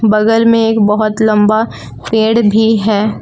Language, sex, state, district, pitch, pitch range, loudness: Hindi, female, Jharkhand, Palamu, 220 Hz, 215-225 Hz, -11 LUFS